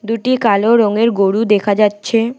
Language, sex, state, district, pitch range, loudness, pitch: Bengali, female, West Bengal, Alipurduar, 205-230 Hz, -14 LUFS, 220 Hz